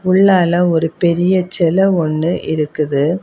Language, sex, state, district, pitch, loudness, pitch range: Tamil, female, Tamil Nadu, Kanyakumari, 170 Hz, -14 LUFS, 160-185 Hz